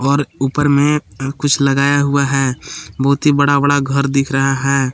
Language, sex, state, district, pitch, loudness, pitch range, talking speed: Hindi, male, Jharkhand, Palamu, 140 Hz, -15 LUFS, 135-145 Hz, 195 wpm